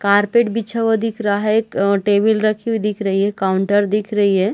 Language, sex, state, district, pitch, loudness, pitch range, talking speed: Hindi, female, Chhattisgarh, Bastar, 210 Hz, -17 LUFS, 200-220 Hz, 235 wpm